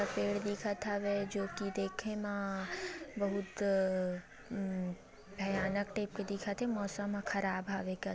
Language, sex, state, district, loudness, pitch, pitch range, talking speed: Chhattisgarhi, female, Chhattisgarh, Raigarh, -37 LUFS, 200 Hz, 195-205 Hz, 130 wpm